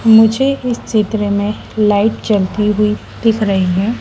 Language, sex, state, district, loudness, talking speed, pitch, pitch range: Hindi, female, Madhya Pradesh, Dhar, -14 LUFS, 150 wpm, 215 Hz, 205-225 Hz